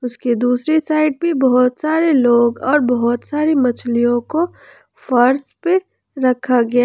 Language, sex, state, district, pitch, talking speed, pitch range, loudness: Hindi, male, Jharkhand, Ranchi, 255 Hz, 140 wpm, 245-310 Hz, -16 LUFS